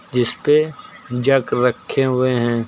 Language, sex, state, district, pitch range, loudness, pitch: Hindi, male, Uttar Pradesh, Lucknow, 125-135 Hz, -18 LUFS, 125 Hz